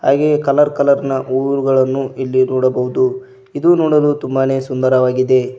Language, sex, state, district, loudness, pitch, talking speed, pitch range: Kannada, male, Karnataka, Koppal, -15 LUFS, 130 Hz, 120 wpm, 130-140 Hz